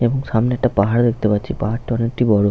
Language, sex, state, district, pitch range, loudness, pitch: Bengali, male, West Bengal, Paschim Medinipur, 110-125 Hz, -18 LUFS, 115 Hz